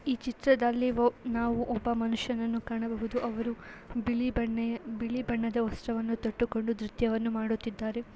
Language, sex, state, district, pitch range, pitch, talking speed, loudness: Kannada, female, Karnataka, Belgaum, 230-240 Hz, 235 Hz, 110 wpm, -31 LUFS